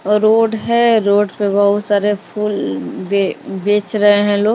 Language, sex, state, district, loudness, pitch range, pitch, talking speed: Hindi, female, Maharashtra, Mumbai Suburban, -15 LUFS, 200-215 Hz, 205 Hz, 170 wpm